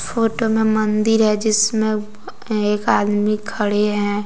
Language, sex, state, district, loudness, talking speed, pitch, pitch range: Hindi, female, Jharkhand, Deoghar, -18 LUFS, 125 wpm, 215 Hz, 210-220 Hz